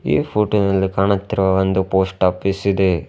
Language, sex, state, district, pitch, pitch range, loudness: Kannada, male, Karnataka, Bidar, 95 Hz, 95-100 Hz, -18 LUFS